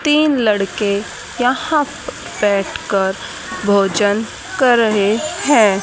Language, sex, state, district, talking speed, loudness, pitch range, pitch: Hindi, female, Haryana, Charkhi Dadri, 105 wpm, -16 LUFS, 200-255 Hz, 210 Hz